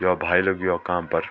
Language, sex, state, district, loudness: Garhwali, male, Uttarakhand, Tehri Garhwal, -23 LUFS